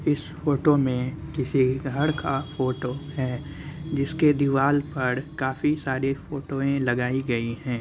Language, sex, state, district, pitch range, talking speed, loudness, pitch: Hindi, male, Bihar, Muzaffarpur, 130-145 Hz, 130 wpm, -25 LUFS, 135 Hz